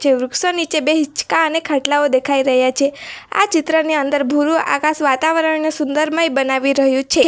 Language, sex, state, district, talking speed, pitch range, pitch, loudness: Gujarati, female, Gujarat, Valsad, 165 wpm, 275-315 Hz, 290 Hz, -16 LUFS